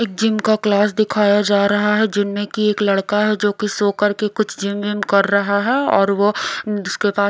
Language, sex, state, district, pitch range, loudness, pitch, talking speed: Hindi, female, Odisha, Khordha, 200-210 Hz, -17 LUFS, 205 Hz, 220 wpm